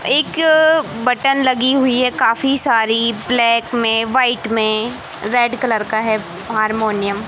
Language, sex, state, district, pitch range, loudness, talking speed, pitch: Hindi, male, Madhya Pradesh, Katni, 220-255 Hz, -15 LUFS, 140 wpm, 230 Hz